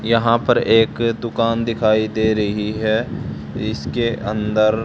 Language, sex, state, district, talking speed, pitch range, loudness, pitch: Hindi, male, Haryana, Charkhi Dadri, 125 wpm, 110-115 Hz, -19 LUFS, 115 Hz